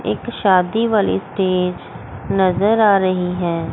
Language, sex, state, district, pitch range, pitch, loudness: Hindi, female, Chandigarh, Chandigarh, 180-205 Hz, 185 Hz, -17 LUFS